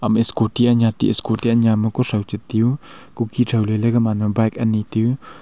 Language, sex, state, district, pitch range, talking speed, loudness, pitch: Wancho, male, Arunachal Pradesh, Longding, 110-120 Hz, 220 wpm, -19 LUFS, 115 Hz